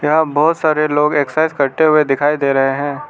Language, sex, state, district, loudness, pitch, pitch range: Hindi, male, Arunachal Pradesh, Lower Dibang Valley, -15 LUFS, 150 Hz, 140-155 Hz